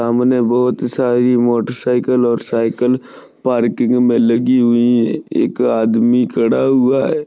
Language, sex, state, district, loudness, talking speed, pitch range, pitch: Hindi, male, Maharashtra, Sindhudurg, -15 LUFS, 140 wpm, 120-125 Hz, 120 Hz